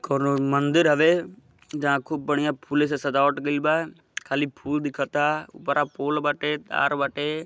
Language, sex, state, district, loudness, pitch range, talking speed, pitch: Bhojpuri, male, Uttar Pradesh, Gorakhpur, -24 LUFS, 140-150 Hz, 155 wpm, 145 Hz